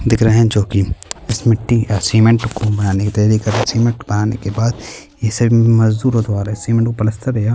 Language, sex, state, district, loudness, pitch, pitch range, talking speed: Hindi, male, Chhattisgarh, Kabirdham, -15 LUFS, 110 Hz, 105-115 Hz, 220 wpm